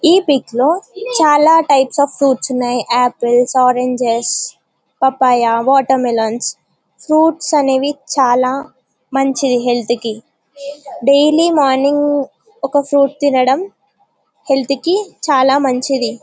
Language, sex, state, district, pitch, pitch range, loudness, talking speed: Telugu, female, Telangana, Karimnagar, 270 Hz, 250-290 Hz, -14 LUFS, 105 wpm